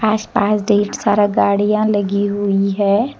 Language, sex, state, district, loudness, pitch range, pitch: Hindi, female, Jharkhand, Deoghar, -16 LUFS, 200-210 Hz, 205 Hz